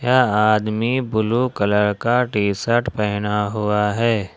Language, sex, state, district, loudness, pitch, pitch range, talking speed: Hindi, male, Jharkhand, Ranchi, -19 LUFS, 110 Hz, 105-120 Hz, 135 wpm